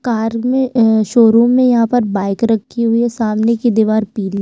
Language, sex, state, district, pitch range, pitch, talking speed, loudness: Hindi, female, Chhattisgarh, Sukma, 220-240 Hz, 230 Hz, 205 wpm, -14 LUFS